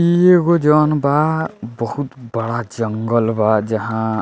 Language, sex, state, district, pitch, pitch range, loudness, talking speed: Bhojpuri, male, Bihar, Muzaffarpur, 120 Hz, 110-150 Hz, -17 LUFS, 140 wpm